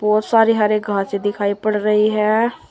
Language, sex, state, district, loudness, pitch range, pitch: Hindi, female, Uttar Pradesh, Saharanpur, -17 LUFS, 205-215 Hz, 210 Hz